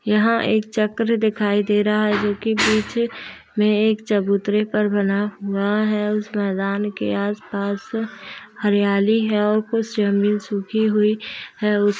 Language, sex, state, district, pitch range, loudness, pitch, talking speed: Hindi, female, Bihar, Gopalganj, 205-215 Hz, -20 LUFS, 210 Hz, 150 wpm